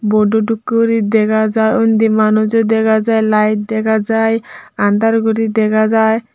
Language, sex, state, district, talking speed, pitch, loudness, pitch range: Chakma, female, Tripura, Unakoti, 140 wpm, 220 Hz, -13 LUFS, 215-225 Hz